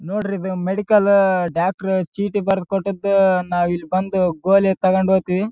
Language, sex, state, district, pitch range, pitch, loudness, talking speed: Kannada, male, Karnataka, Raichur, 185-195 Hz, 190 Hz, -18 LUFS, 140 wpm